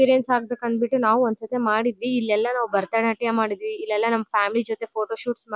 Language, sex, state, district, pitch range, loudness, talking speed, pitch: Kannada, female, Karnataka, Bellary, 220-245 Hz, -23 LUFS, 205 wpm, 230 Hz